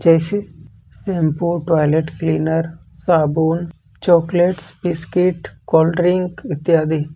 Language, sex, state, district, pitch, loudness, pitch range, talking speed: Hindi, male, Jharkhand, Ranchi, 165 Hz, -18 LUFS, 155-175 Hz, 85 wpm